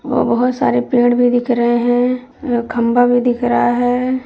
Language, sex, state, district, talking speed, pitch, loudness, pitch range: Hindi, female, Uttar Pradesh, Jyotiba Phule Nagar, 195 wpm, 245 Hz, -15 LUFS, 240-245 Hz